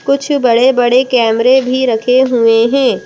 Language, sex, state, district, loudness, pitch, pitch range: Hindi, female, Madhya Pradesh, Bhopal, -11 LUFS, 250 Hz, 235-260 Hz